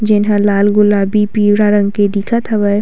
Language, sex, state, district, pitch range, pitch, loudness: Chhattisgarhi, female, Chhattisgarh, Sukma, 205-210 Hz, 205 Hz, -12 LUFS